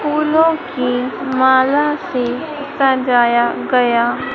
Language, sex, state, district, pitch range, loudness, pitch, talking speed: Hindi, female, Madhya Pradesh, Dhar, 245-295 Hz, -15 LUFS, 260 Hz, 85 wpm